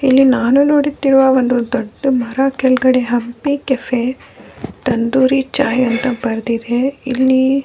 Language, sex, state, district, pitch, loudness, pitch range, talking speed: Kannada, female, Karnataka, Bellary, 260 Hz, -15 LUFS, 245-270 Hz, 120 wpm